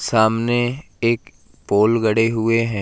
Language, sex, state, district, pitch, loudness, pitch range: Hindi, male, Madhya Pradesh, Umaria, 115 Hz, -19 LUFS, 110-115 Hz